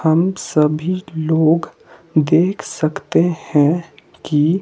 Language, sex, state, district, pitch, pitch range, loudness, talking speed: Hindi, male, Himachal Pradesh, Shimla, 160 Hz, 155-175 Hz, -17 LUFS, 90 wpm